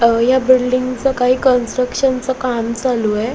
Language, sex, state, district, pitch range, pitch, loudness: Marathi, female, Maharashtra, Solapur, 235-260 Hz, 255 Hz, -16 LUFS